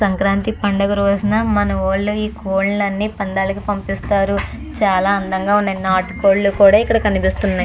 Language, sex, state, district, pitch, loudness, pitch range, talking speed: Telugu, female, Andhra Pradesh, Chittoor, 200 Hz, -17 LUFS, 195-205 Hz, 125 wpm